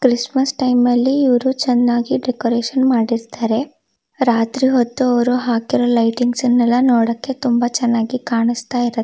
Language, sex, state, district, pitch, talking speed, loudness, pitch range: Kannada, female, Karnataka, Shimoga, 245 Hz, 120 wpm, -16 LUFS, 235-255 Hz